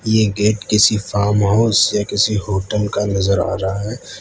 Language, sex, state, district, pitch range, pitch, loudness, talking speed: Hindi, male, Gujarat, Valsad, 100-105 Hz, 105 Hz, -17 LUFS, 185 wpm